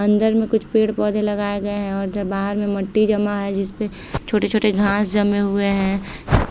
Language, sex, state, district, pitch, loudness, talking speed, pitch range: Hindi, female, Bihar, Saharsa, 205 Hz, -20 LUFS, 175 wpm, 200-210 Hz